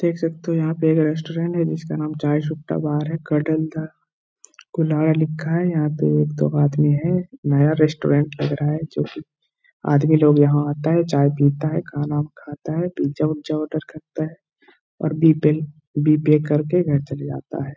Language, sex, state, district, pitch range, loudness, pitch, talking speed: Hindi, male, Bihar, Supaul, 145-160 Hz, -20 LUFS, 155 Hz, 195 wpm